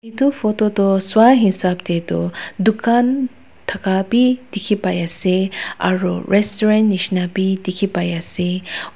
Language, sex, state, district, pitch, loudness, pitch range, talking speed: Nagamese, female, Nagaland, Dimapur, 195 Hz, -17 LUFS, 185-220 Hz, 100 wpm